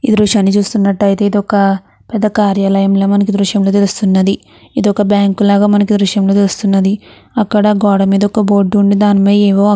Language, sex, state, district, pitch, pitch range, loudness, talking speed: Telugu, female, Andhra Pradesh, Chittoor, 200 Hz, 195-205 Hz, -12 LUFS, 155 wpm